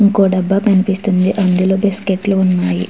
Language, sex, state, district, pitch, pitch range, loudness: Telugu, female, Andhra Pradesh, Chittoor, 190 Hz, 185-195 Hz, -14 LUFS